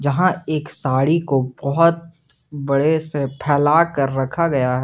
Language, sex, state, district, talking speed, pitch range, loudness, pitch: Hindi, male, Jharkhand, Garhwa, 150 wpm, 135-160 Hz, -19 LUFS, 145 Hz